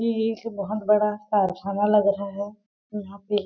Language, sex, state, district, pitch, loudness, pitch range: Hindi, female, Chhattisgarh, Balrampur, 210 Hz, -24 LUFS, 200-210 Hz